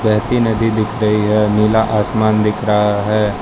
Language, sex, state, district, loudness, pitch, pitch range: Hindi, male, Arunachal Pradesh, Lower Dibang Valley, -15 LUFS, 105 Hz, 105-110 Hz